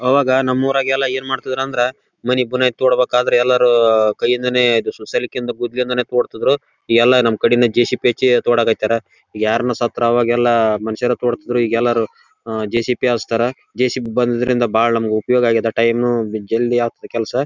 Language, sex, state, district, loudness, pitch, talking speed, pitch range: Kannada, male, Karnataka, Raichur, -17 LUFS, 120 Hz, 50 wpm, 115-125 Hz